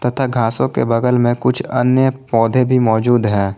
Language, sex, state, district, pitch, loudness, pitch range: Hindi, male, Jharkhand, Garhwa, 125 Hz, -15 LUFS, 115-130 Hz